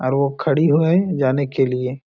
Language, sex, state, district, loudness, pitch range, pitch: Hindi, male, Chhattisgarh, Balrampur, -18 LUFS, 130-155 Hz, 140 Hz